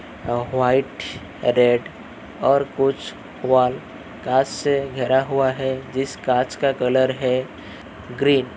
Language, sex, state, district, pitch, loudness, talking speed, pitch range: Hindi, male, Uttar Pradesh, Jyotiba Phule Nagar, 130 Hz, -21 LUFS, 120 wpm, 125-135 Hz